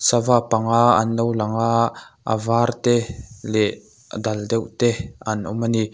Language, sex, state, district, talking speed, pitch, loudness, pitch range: Mizo, male, Mizoram, Aizawl, 180 wpm, 115 Hz, -20 LUFS, 110-115 Hz